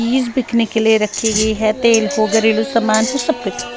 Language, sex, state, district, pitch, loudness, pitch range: Hindi, female, Bihar, West Champaran, 225 Hz, -15 LUFS, 215-240 Hz